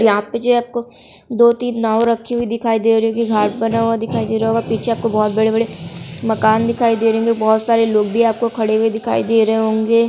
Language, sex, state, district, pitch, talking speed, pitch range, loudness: Hindi, female, Bihar, East Champaran, 225 Hz, 240 wpm, 220-230 Hz, -16 LUFS